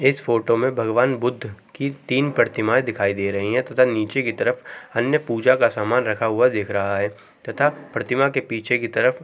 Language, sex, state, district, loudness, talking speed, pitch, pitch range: Hindi, male, Uttar Pradesh, Jalaun, -21 LUFS, 200 wpm, 125 Hz, 110-135 Hz